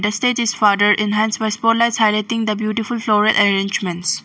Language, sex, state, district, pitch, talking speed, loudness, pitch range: English, female, Arunachal Pradesh, Longding, 215 Hz, 170 wpm, -17 LUFS, 210-225 Hz